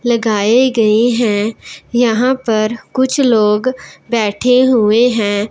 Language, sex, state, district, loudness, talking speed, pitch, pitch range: Hindi, male, Punjab, Pathankot, -13 LUFS, 110 wpm, 235 Hz, 215-250 Hz